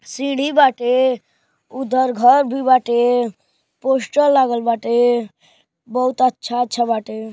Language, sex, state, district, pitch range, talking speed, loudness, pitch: Bhojpuri, male, Uttar Pradesh, Gorakhpur, 235-265 Hz, 105 wpm, -17 LUFS, 250 Hz